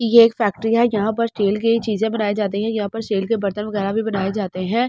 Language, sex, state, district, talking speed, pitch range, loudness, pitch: Hindi, female, Delhi, New Delhi, 280 wpm, 205-230 Hz, -20 LUFS, 215 Hz